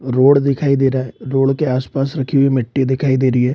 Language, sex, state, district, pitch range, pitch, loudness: Hindi, male, Bihar, Purnia, 130-140 Hz, 135 Hz, -16 LUFS